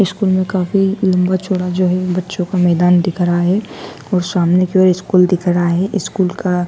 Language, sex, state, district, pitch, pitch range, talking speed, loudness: Hindi, female, Madhya Pradesh, Dhar, 180 Hz, 180-185 Hz, 215 wpm, -15 LUFS